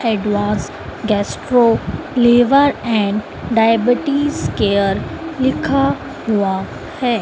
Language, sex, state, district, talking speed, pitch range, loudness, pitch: Hindi, female, Madhya Pradesh, Dhar, 75 wpm, 210-260 Hz, -16 LUFS, 230 Hz